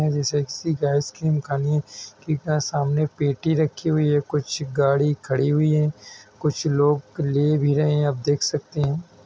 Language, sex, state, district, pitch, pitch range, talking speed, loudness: Hindi, male, Uttar Pradesh, Hamirpur, 145 Hz, 140-150 Hz, 170 wpm, -22 LUFS